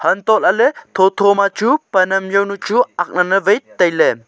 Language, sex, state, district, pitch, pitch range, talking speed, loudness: Wancho, male, Arunachal Pradesh, Longding, 195 Hz, 185-205 Hz, 140 wpm, -15 LUFS